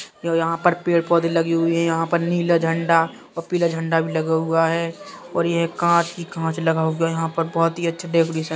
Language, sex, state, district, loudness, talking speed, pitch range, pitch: Bundeli, male, Uttar Pradesh, Jalaun, -20 LUFS, 225 wpm, 165-170 Hz, 165 Hz